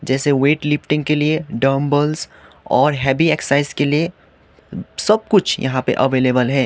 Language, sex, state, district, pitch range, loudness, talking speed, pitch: Hindi, male, Sikkim, Gangtok, 135-155 Hz, -17 LUFS, 145 wpm, 145 Hz